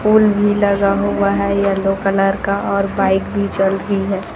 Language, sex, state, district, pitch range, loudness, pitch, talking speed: Hindi, female, Chhattisgarh, Raipur, 195-200 Hz, -16 LUFS, 200 Hz, 190 wpm